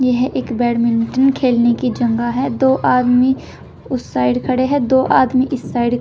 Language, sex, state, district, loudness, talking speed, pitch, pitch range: Hindi, female, Uttar Pradesh, Shamli, -16 LUFS, 180 wpm, 250 Hz, 240-260 Hz